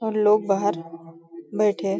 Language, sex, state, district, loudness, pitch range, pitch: Hindi, female, Maharashtra, Nagpur, -22 LUFS, 170-210 Hz, 195 Hz